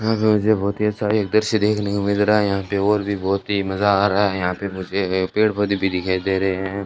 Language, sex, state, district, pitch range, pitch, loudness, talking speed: Hindi, male, Rajasthan, Bikaner, 95-105 Hz, 100 Hz, -20 LUFS, 280 wpm